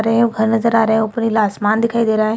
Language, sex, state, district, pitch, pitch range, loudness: Hindi, female, Bihar, Purnia, 225 Hz, 220-230 Hz, -16 LUFS